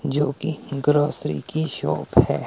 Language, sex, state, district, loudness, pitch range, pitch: Hindi, male, Himachal Pradesh, Shimla, -23 LUFS, 140-150 Hz, 145 Hz